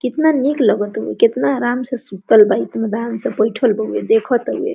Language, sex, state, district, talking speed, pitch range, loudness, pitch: Hindi, female, Jharkhand, Sahebganj, 200 wpm, 220-265 Hz, -16 LUFS, 235 Hz